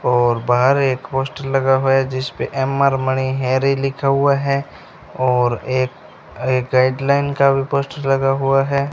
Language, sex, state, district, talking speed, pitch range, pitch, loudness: Hindi, male, Rajasthan, Bikaner, 170 wpm, 130-140 Hz, 135 Hz, -18 LUFS